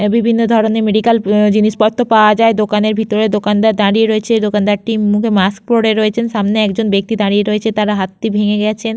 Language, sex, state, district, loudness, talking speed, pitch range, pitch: Bengali, female, West Bengal, Jhargram, -13 LUFS, 175 wpm, 210-225 Hz, 215 Hz